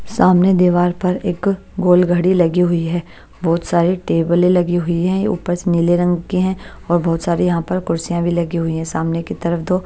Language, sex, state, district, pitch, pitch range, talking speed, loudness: Hindi, female, Bihar, Patna, 175 Hz, 170-180 Hz, 215 wpm, -17 LUFS